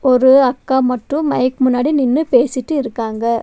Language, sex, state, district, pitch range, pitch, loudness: Tamil, female, Tamil Nadu, Nilgiris, 250-275 Hz, 255 Hz, -15 LUFS